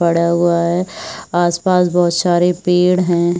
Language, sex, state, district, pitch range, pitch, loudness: Hindi, female, Chhattisgarh, Bilaspur, 170-180 Hz, 175 Hz, -15 LUFS